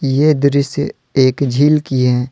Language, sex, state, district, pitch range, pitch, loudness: Hindi, male, Jharkhand, Deoghar, 130-145 Hz, 140 Hz, -14 LUFS